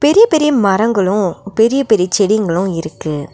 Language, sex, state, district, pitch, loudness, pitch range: Tamil, female, Tamil Nadu, Nilgiris, 205 Hz, -14 LUFS, 185-240 Hz